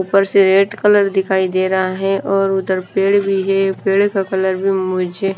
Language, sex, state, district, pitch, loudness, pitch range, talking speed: Hindi, female, Himachal Pradesh, Shimla, 195 Hz, -15 LUFS, 190-195 Hz, 200 wpm